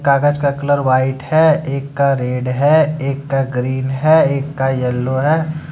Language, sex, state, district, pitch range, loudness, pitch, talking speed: Hindi, male, Jharkhand, Deoghar, 130-150 Hz, -16 LUFS, 140 Hz, 180 wpm